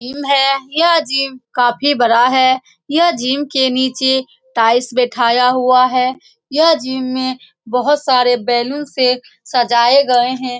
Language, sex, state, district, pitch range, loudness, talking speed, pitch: Hindi, female, Bihar, Saran, 245-275 Hz, -14 LUFS, 145 wpm, 255 Hz